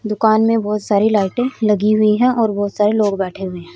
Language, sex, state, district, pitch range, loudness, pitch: Hindi, female, Haryana, Rohtak, 205-220 Hz, -16 LUFS, 210 Hz